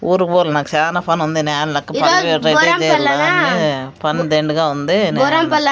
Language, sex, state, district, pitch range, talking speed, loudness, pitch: Telugu, female, Andhra Pradesh, Sri Satya Sai, 150-175 Hz, 95 wpm, -15 LUFS, 160 Hz